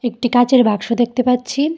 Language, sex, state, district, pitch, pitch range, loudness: Bengali, female, Tripura, Dhalai, 245 Hz, 240-255 Hz, -16 LUFS